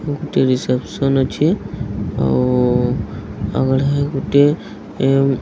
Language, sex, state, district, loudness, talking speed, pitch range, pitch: Odia, male, Odisha, Sambalpur, -17 LUFS, 100 wpm, 115-135 Hz, 130 Hz